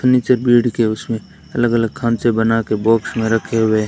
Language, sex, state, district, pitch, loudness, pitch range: Hindi, male, Rajasthan, Bikaner, 115 Hz, -17 LUFS, 110-120 Hz